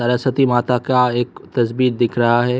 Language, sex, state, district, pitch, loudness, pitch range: Hindi, male, Delhi, New Delhi, 125 Hz, -17 LUFS, 120-125 Hz